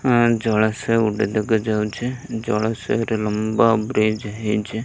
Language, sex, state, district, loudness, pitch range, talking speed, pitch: Odia, male, Odisha, Malkangiri, -20 LUFS, 105-115 Hz, 110 wpm, 110 Hz